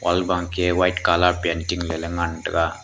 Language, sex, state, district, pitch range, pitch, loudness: Wancho, male, Arunachal Pradesh, Longding, 85-90 Hz, 85 Hz, -21 LUFS